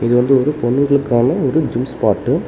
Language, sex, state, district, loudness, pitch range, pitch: Tamil, male, Tamil Nadu, Namakkal, -15 LUFS, 120-140 Hz, 130 Hz